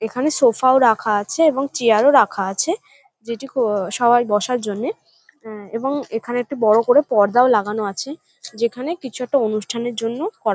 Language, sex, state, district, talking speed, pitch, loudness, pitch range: Bengali, female, West Bengal, North 24 Parganas, 180 wpm, 240 Hz, -18 LUFS, 215-270 Hz